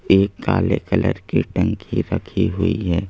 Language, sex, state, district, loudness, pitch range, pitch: Hindi, male, Madhya Pradesh, Bhopal, -20 LUFS, 90-105 Hz, 95 Hz